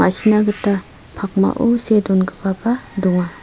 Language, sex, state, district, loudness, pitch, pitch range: Garo, female, Meghalaya, South Garo Hills, -18 LUFS, 200 Hz, 190-215 Hz